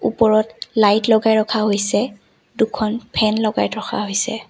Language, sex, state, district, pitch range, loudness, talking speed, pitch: Assamese, female, Assam, Sonitpur, 215-225 Hz, -18 LUFS, 135 wpm, 220 Hz